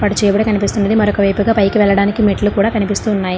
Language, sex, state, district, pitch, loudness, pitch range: Telugu, female, Andhra Pradesh, Srikakulam, 205 Hz, -14 LUFS, 200-210 Hz